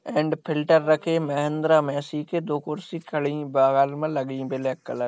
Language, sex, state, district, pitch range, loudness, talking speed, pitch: Hindi, male, Uttar Pradesh, Hamirpur, 140-155 Hz, -24 LUFS, 210 wpm, 150 Hz